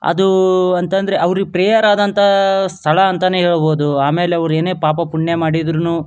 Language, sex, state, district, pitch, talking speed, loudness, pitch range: Kannada, male, Karnataka, Dharwad, 180 Hz, 140 wpm, -14 LUFS, 165-190 Hz